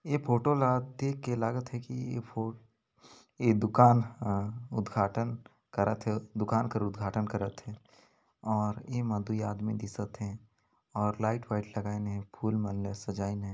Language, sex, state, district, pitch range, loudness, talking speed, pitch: Sadri, male, Chhattisgarh, Jashpur, 105-120 Hz, -32 LUFS, 170 wpm, 110 Hz